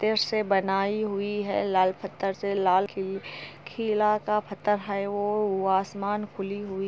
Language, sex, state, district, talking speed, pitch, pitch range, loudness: Hindi, female, Andhra Pradesh, Anantapur, 150 wpm, 200 Hz, 195-210 Hz, -27 LUFS